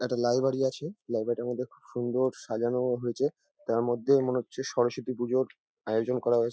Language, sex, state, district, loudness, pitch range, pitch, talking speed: Bengali, male, West Bengal, North 24 Parganas, -29 LUFS, 120-130 Hz, 125 Hz, 175 wpm